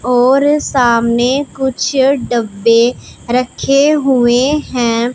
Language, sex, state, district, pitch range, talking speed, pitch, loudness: Hindi, female, Punjab, Pathankot, 240-275 Hz, 80 wpm, 250 Hz, -13 LUFS